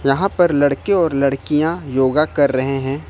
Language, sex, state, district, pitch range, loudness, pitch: Hindi, male, Jharkhand, Ranchi, 135-160 Hz, -17 LUFS, 145 Hz